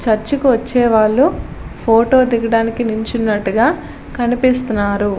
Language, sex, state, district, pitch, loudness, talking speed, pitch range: Telugu, female, Andhra Pradesh, Visakhapatnam, 230 Hz, -15 LUFS, 80 wpm, 220-250 Hz